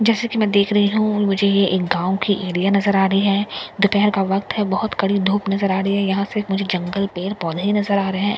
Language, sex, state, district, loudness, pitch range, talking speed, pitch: Hindi, female, Bihar, Katihar, -19 LUFS, 195-205 Hz, 280 wpm, 200 Hz